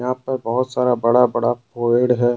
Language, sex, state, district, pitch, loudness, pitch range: Hindi, male, Jharkhand, Deoghar, 125 Hz, -18 LUFS, 120-125 Hz